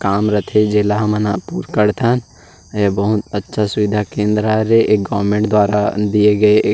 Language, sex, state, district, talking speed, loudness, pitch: Chhattisgarhi, male, Chhattisgarh, Rajnandgaon, 160 wpm, -16 LUFS, 105 Hz